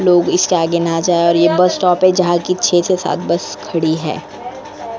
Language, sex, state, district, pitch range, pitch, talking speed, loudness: Hindi, female, Goa, North and South Goa, 170-180 Hz, 175 Hz, 230 wpm, -14 LUFS